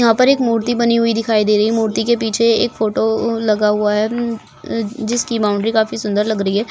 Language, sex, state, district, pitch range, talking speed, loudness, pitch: Hindi, female, Goa, North and South Goa, 210-230 Hz, 230 wpm, -16 LUFS, 225 Hz